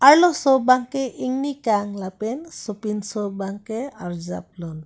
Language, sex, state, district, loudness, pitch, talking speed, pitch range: Karbi, female, Assam, Karbi Anglong, -22 LUFS, 220 Hz, 125 wpm, 195-265 Hz